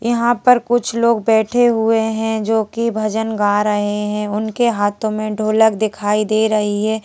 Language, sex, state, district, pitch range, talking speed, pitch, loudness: Hindi, female, Madhya Pradesh, Bhopal, 210-225 Hz, 170 wpm, 220 Hz, -16 LUFS